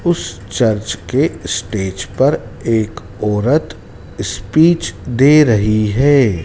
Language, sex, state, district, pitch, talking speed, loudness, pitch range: Hindi, male, Madhya Pradesh, Dhar, 105 Hz, 95 wpm, -15 LUFS, 95-135 Hz